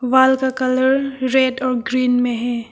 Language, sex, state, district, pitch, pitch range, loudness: Hindi, female, Arunachal Pradesh, Papum Pare, 255 Hz, 245-260 Hz, -17 LUFS